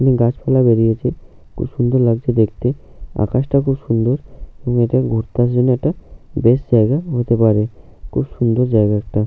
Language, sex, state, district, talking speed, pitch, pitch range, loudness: Bengali, male, West Bengal, Jhargram, 130 wpm, 120 Hz, 115-130 Hz, -17 LUFS